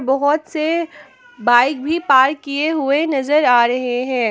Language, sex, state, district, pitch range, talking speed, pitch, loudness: Hindi, female, Jharkhand, Ranchi, 255-310 Hz, 165 wpm, 280 Hz, -16 LUFS